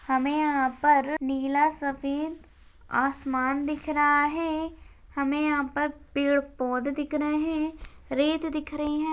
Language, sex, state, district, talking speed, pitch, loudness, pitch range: Hindi, female, Maharashtra, Sindhudurg, 140 wpm, 290 Hz, -27 LUFS, 280-305 Hz